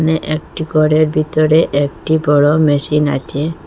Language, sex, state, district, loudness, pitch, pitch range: Bengali, female, Assam, Hailakandi, -14 LUFS, 155 Hz, 145-155 Hz